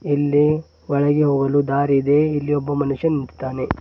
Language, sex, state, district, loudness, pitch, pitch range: Kannada, male, Karnataka, Bidar, -19 LUFS, 145 Hz, 140-150 Hz